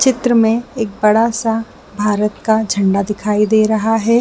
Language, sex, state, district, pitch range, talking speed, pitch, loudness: Hindi, female, Chhattisgarh, Bilaspur, 210-225 Hz, 155 wpm, 220 Hz, -15 LUFS